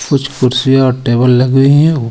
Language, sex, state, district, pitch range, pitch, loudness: Hindi, male, Jharkhand, Ranchi, 125-140 Hz, 130 Hz, -10 LUFS